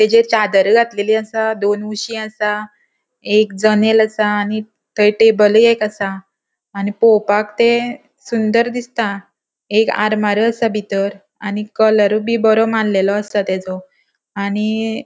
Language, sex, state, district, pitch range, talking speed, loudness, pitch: Konkani, female, Goa, North and South Goa, 205-225 Hz, 125 wpm, -15 LUFS, 215 Hz